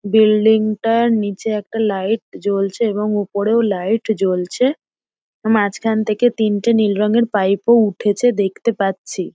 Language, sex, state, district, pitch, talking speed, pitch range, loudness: Bengali, female, West Bengal, Dakshin Dinajpur, 215 Hz, 115 wpm, 200-225 Hz, -17 LUFS